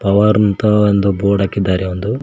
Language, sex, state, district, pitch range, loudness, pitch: Kannada, male, Karnataka, Koppal, 100-105 Hz, -14 LUFS, 100 Hz